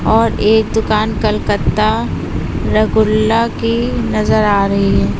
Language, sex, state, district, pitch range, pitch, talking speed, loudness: Hindi, female, Uttar Pradesh, Lucknow, 195-225 Hz, 215 Hz, 115 wpm, -14 LUFS